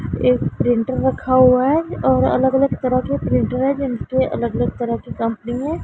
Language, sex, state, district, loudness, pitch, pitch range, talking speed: Hindi, female, Punjab, Pathankot, -18 LUFS, 255 Hz, 230-265 Hz, 185 wpm